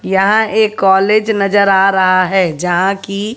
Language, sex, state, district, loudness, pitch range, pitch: Hindi, female, Haryana, Jhajjar, -12 LUFS, 190-210 Hz, 195 Hz